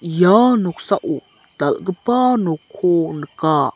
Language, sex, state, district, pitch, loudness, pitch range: Garo, male, Meghalaya, South Garo Hills, 175 Hz, -17 LUFS, 160-215 Hz